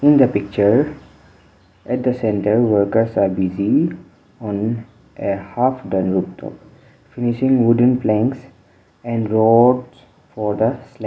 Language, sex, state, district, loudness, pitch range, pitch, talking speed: English, male, Mizoram, Aizawl, -18 LUFS, 100-125 Hz, 110 Hz, 120 wpm